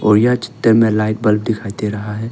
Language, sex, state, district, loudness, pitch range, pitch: Hindi, male, Arunachal Pradesh, Longding, -16 LUFS, 105-115 Hz, 110 Hz